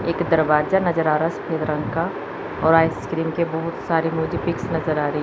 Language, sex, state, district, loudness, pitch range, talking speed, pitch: Hindi, female, Chandigarh, Chandigarh, -21 LUFS, 155-165 Hz, 220 wpm, 165 Hz